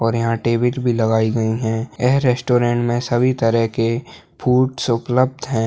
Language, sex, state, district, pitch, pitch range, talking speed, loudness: Hindi, male, Bihar, Jahanabad, 120 Hz, 115-125 Hz, 170 wpm, -18 LUFS